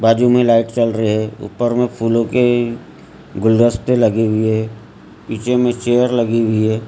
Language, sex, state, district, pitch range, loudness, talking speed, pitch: Hindi, male, Maharashtra, Gondia, 110-120 Hz, -16 LUFS, 165 wpm, 115 Hz